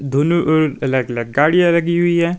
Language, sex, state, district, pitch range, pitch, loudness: Hindi, male, Himachal Pradesh, Shimla, 140-170 Hz, 155 Hz, -16 LUFS